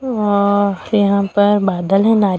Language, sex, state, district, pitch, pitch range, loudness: Hindi, female, Uttar Pradesh, Lucknow, 200 Hz, 195-205 Hz, -15 LUFS